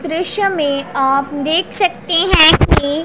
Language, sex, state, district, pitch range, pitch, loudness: Hindi, female, Punjab, Pathankot, 280-355 Hz, 320 Hz, -13 LUFS